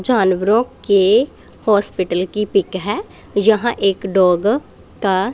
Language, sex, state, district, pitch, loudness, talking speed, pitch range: Hindi, female, Punjab, Pathankot, 205 Hz, -17 LUFS, 110 wpm, 190-230 Hz